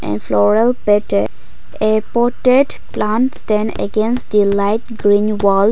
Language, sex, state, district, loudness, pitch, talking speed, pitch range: English, female, Nagaland, Kohima, -15 LUFS, 215 Hz, 95 wpm, 200-235 Hz